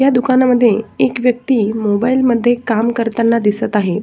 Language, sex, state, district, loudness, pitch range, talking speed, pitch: Marathi, female, Maharashtra, Sindhudurg, -14 LUFS, 220-250 Hz, 150 wpm, 235 Hz